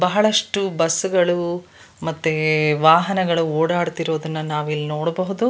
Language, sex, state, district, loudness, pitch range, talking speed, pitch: Kannada, female, Karnataka, Bangalore, -20 LUFS, 155-185 Hz, 85 wpm, 165 Hz